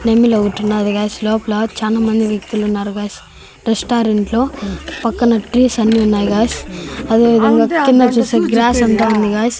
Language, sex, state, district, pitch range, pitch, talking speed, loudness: Telugu, male, Andhra Pradesh, Annamaya, 210-235 Hz, 225 Hz, 160 wpm, -14 LUFS